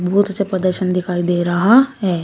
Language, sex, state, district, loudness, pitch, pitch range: Hindi, female, Uttar Pradesh, Shamli, -16 LUFS, 185 Hz, 175-200 Hz